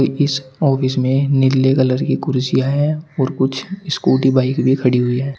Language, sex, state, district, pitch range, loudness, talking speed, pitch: Hindi, male, Uttar Pradesh, Shamli, 130-140 Hz, -16 LUFS, 180 wpm, 135 Hz